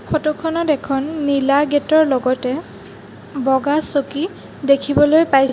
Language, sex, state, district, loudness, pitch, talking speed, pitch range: Assamese, female, Assam, Sonitpur, -17 LUFS, 285 Hz, 120 wpm, 270-310 Hz